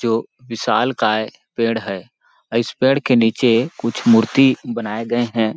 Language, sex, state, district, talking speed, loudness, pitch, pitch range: Hindi, male, Chhattisgarh, Balrampur, 150 wpm, -18 LUFS, 115 Hz, 115-125 Hz